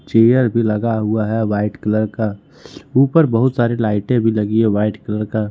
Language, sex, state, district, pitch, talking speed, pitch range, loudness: Hindi, male, Jharkhand, Ranchi, 110 Hz, 185 wpm, 105-115 Hz, -17 LUFS